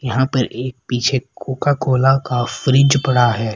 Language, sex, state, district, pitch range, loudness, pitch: Hindi, female, Haryana, Rohtak, 125-135 Hz, -17 LUFS, 130 Hz